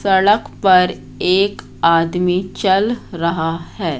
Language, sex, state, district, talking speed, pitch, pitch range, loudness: Hindi, female, Madhya Pradesh, Katni, 105 wpm, 185 Hz, 170-195 Hz, -16 LUFS